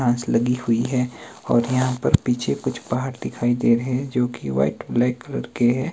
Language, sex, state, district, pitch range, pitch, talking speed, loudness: Hindi, male, Himachal Pradesh, Shimla, 120-125 Hz, 125 Hz, 210 wpm, -22 LUFS